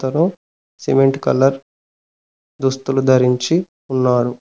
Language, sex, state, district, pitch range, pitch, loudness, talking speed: Telugu, male, Telangana, Mahabubabad, 130-135 Hz, 135 Hz, -17 LUFS, 65 wpm